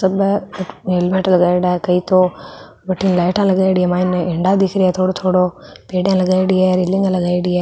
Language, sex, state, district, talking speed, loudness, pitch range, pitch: Marwari, female, Rajasthan, Nagaur, 195 wpm, -16 LUFS, 180-190 Hz, 185 Hz